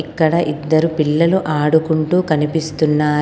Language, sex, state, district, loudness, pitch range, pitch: Telugu, female, Telangana, Komaram Bheem, -16 LUFS, 150-160 Hz, 155 Hz